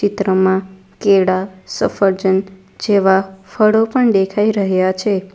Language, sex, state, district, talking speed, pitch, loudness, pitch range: Gujarati, female, Gujarat, Valsad, 100 wpm, 195 Hz, -15 LUFS, 190-205 Hz